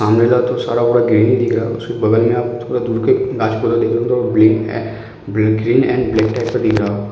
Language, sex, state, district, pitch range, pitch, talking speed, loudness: Hindi, male, Uttar Pradesh, Ghazipur, 110-120 Hz, 115 Hz, 210 wpm, -15 LUFS